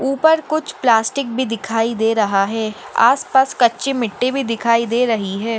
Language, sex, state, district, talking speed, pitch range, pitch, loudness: Hindi, female, Maharashtra, Nagpur, 170 wpm, 225-265 Hz, 235 Hz, -17 LUFS